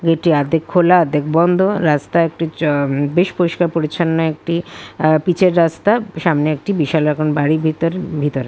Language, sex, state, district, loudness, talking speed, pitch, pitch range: Bengali, female, West Bengal, Kolkata, -16 LUFS, 170 wpm, 165 Hz, 150-175 Hz